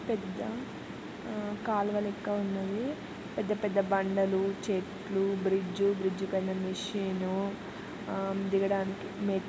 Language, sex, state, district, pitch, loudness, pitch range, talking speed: Telugu, female, Telangana, Karimnagar, 195 Hz, -32 LUFS, 195-205 Hz, 95 wpm